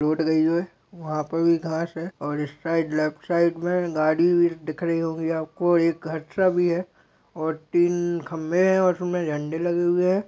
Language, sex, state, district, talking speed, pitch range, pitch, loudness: Hindi, male, Uttar Pradesh, Deoria, 190 wpm, 160-175 Hz, 165 Hz, -24 LUFS